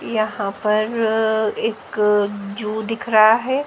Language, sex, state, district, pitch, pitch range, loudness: Hindi, female, Haryana, Jhajjar, 215 Hz, 210-225 Hz, -19 LUFS